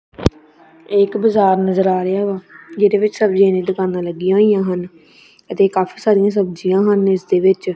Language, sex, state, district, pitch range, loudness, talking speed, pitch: Punjabi, female, Punjab, Kapurthala, 185-200 Hz, -16 LUFS, 160 wpm, 190 Hz